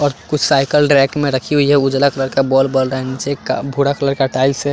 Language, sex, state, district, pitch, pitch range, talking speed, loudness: Hindi, male, Chandigarh, Chandigarh, 135 Hz, 135-145 Hz, 280 wpm, -15 LUFS